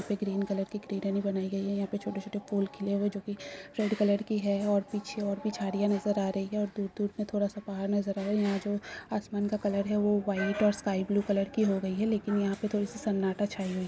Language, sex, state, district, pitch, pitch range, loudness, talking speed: Hindi, female, Bihar, Kishanganj, 205 Hz, 195-205 Hz, -31 LUFS, 270 wpm